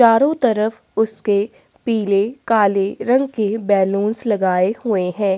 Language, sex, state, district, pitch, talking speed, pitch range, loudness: Hindi, female, Chhattisgarh, Korba, 215 Hz, 125 wpm, 200-230 Hz, -18 LUFS